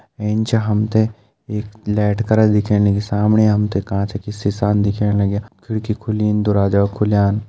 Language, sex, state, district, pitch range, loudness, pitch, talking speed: Hindi, male, Uttarakhand, Uttarkashi, 105-110 Hz, -18 LUFS, 105 Hz, 150 wpm